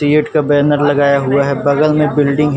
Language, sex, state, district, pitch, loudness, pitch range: Hindi, male, Uttar Pradesh, Varanasi, 145 Hz, -13 LUFS, 140-150 Hz